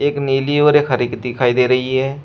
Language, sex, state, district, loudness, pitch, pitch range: Hindi, male, Uttar Pradesh, Shamli, -16 LUFS, 130 Hz, 125-145 Hz